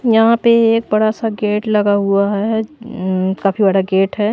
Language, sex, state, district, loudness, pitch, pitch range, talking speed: Hindi, female, Maharashtra, Washim, -15 LUFS, 210 Hz, 195-225 Hz, 180 wpm